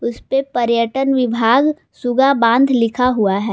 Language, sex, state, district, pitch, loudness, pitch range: Hindi, female, Jharkhand, Garhwa, 245 Hz, -16 LUFS, 230-270 Hz